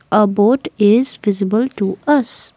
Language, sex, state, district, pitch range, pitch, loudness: English, female, Assam, Kamrup Metropolitan, 205-255 Hz, 215 Hz, -15 LUFS